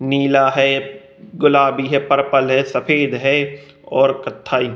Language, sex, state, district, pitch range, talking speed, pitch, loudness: Hindi, male, Bihar, East Champaran, 135-140 Hz, 150 wpm, 135 Hz, -16 LUFS